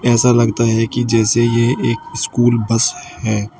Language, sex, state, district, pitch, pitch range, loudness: Hindi, male, Uttar Pradesh, Shamli, 115 Hz, 115-120 Hz, -15 LUFS